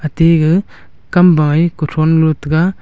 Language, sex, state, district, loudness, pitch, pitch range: Wancho, male, Arunachal Pradesh, Longding, -12 LUFS, 160 Hz, 155-170 Hz